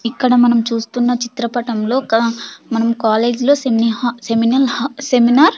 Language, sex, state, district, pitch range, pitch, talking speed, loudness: Telugu, female, Andhra Pradesh, Sri Satya Sai, 230-250 Hz, 240 Hz, 130 wpm, -15 LUFS